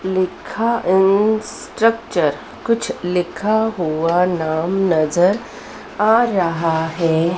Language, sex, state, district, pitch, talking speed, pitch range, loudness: Hindi, female, Madhya Pradesh, Dhar, 185 Hz, 90 wpm, 170-220 Hz, -18 LUFS